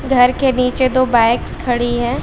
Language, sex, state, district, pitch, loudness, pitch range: Hindi, female, Bihar, West Champaran, 250 Hz, -15 LUFS, 240-255 Hz